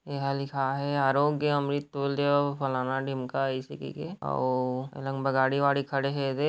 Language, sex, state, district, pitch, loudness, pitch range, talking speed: Chhattisgarhi, male, Chhattisgarh, Rajnandgaon, 140 Hz, -28 LUFS, 135-140 Hz, 165 wpm